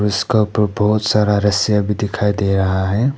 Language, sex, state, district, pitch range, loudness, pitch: Hindi, male, Arunachal Pradesh, Papum Pare, 100-105 Hz, -16 LUFS, 105 Hz